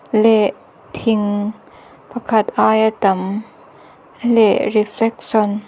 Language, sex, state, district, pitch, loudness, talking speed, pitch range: Mizo, female, Mizoram, Aizawl, 215 Hz, -17 LUFS, 85 wpm, 210-225 Hz